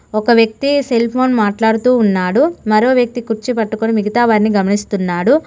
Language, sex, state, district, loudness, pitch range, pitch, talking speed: Telugu, female, Telangana, Mahabubabad, -14 LUFS, 215-250 Hz, 225 Hz, 145 wpm